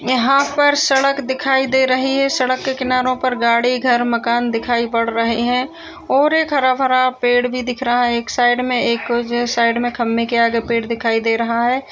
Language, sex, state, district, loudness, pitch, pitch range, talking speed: Hindi, female, Uttar Pradesh, Hamirpur, -16 LUFS, 245 Hz, 235-260 Hz, 210 wpm